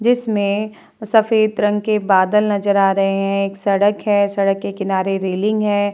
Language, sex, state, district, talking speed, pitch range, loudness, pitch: Hindi, female, Uttar Pradesh, Jalaun, 170 wpm, 195-215 Hz, -17 LUFS, 205 Hz